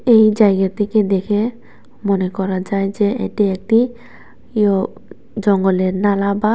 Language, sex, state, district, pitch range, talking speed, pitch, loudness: Bengali, female, Tripura, West Tripura, 195-215 Hz, 130 wpm, 205 Hz, -17 LUFS